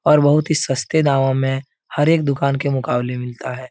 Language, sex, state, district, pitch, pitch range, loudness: Hindi, male, Uttar Pradesh, Etah, 140 Hz, 130-150 Hz, -18 LUFS